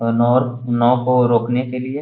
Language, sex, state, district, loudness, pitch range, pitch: Hindi, male, Bihar, Gaya, -17 LUFS, 120-125 Hz, 125 Hz